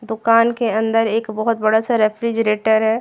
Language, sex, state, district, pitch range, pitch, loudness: Hindi, female, Jharkhand, Garhwa, 220-230 Hz, 225 Hz, -17 LUFS